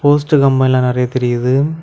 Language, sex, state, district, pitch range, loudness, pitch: Tamil, male, Tamil Nadu, Kanyakumari, 125-145 Hz, -14 LUFS, 130 Hz